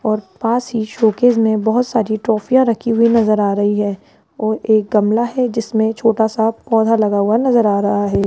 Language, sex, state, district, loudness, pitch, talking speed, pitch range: Hindi, female, Rajasthan, Jaipur, -15 LUFS, 220 Hz, 205 wpm, 210-230 Hz